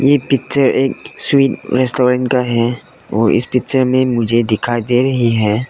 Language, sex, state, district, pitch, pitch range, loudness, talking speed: Hindi, male, Arunachal Pradesh, Lower Dibang Valley, 125 Hz, 120-135 Hz, -15 LUFS, 170 wpm